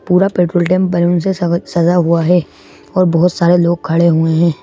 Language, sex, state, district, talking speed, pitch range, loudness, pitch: Hindi, male, Madhya Pradesh, Bhopal, 195 wpm, 170-180 Hz, -13 LUFS, 175 Hz